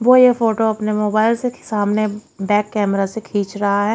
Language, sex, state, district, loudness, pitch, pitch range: Hindi, female, Haryana, Jhajjar, -18 LUFS, 215 Hz, 205-225 Hz